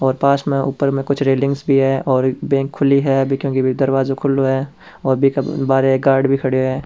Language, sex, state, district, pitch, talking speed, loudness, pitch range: Rajasthani, male, Rajasthan, Churu, 135 Hz, 220 wpm, -17 LUFS, 135-140 Hz